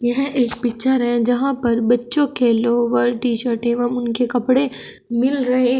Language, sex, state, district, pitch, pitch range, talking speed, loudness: Hindi, female, Uttar Pradesh, Shamli, 245 Hz, 235-255 Hz, 165 wpm, -18 LUFS